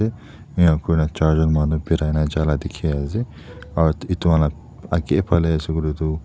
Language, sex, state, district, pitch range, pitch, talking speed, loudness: Nagamese, male, Nagaland, Dimapur, 75-90 Hz, 80 Hz, 180 wpm, -20 LUFS